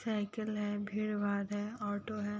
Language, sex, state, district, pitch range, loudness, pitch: Hindi, female, Uttar Pradesh, Ghazipur, 205-215 Hz, -37 LUFS, 210 Hz